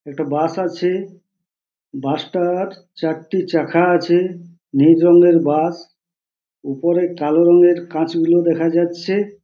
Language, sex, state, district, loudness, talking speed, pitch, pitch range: Bengali, male, West Bengal, Purulia, -16 LUFS, 120 wpm, 170 Hz, 160-180 Hz